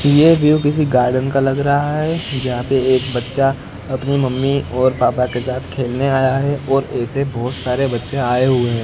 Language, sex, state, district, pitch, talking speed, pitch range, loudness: Hindi, male, Gujarat, Gandhinagar, 130 Hz, 190 wpm, 125-140 Hz, -17 LUFS